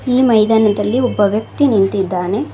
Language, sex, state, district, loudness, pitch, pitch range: Kannada, female, Karnataka, Koppal, -14 LUFS, 215 Hz, 200-245 Hz